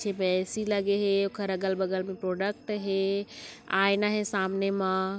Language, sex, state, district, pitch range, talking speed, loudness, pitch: Chhattisgarhi, female, Chhattisgarh, Kabirdham, 190-200 Hz, 160 wpm, -28 LUFS, 195 Hz